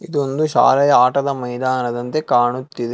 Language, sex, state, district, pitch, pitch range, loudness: Kannada, male, Karnataka, Bangalore, 130 Hz, 120-140 Hz, -17 LUFS